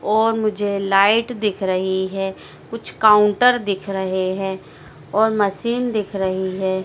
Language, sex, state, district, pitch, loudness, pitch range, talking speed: Hindi, female, Madhya Pradesh, Dhar, 200 Hz, -19 LUFS, 190-220 Hz, 140 wpm